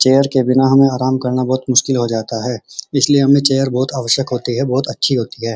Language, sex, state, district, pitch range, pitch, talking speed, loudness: Hindi, male, Uttar Pradesh, Muzaffarnagar, 125-135 Hz, 130 Hz, 225 wpm, -15 LUFS